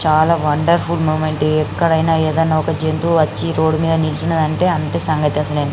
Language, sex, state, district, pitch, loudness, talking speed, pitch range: Telugu, female, Andhra Pradesh, Guntur, 155 Hz, -16 LUFS, 155 wpm, 155-165 Hz